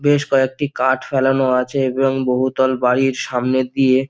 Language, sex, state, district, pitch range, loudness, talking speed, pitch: Bengali, male, West Bengal, Dakshin Dinajpur, 130-135 Hz, -17 LUFS, 145 wpm, 130 Hz